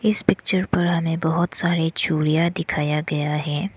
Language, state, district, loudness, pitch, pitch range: Hindi, Arunachal Pradesh, Lower Dibang Valley, -21 LUFS, 165 Hz, 155-175 Hz